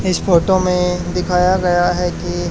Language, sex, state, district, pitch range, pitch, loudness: Hindi, male, Haryana, Charkhi Dadri, 175-180 Hz, 180 Hz, -16 LUFS